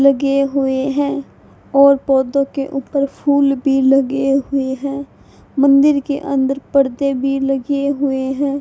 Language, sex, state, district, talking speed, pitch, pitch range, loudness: Hindi, female, Haryana, Charkhi Dadri, 140 wpm, 275 Hz, 270-280 Hz, -16 LUFS